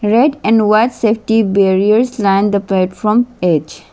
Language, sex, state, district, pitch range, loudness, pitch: English, female, Arunachal Pradesh, Lower Dibang Valley, 195-225 Hz, -13 LUFS, 215 Hz